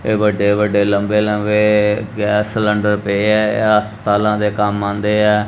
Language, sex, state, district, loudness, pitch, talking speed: Punjabi, male, Punjab, Kapurthala, -15 LUFS, 105 Hz, 140 wpm